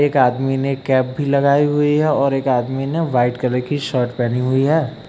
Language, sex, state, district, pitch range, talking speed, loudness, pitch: Hindi, male, Uttar Pradesh, Lucknow, 125-145 Hz, 225 wpm, -17 LUFS, 135 Hz